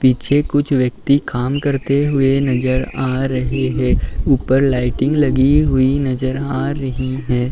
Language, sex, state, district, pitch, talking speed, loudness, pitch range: Hindi, male, Uttar Pradesh, Varanasi, 130 Hz, 145 wpm, -17 LUFS, 130-140 Hz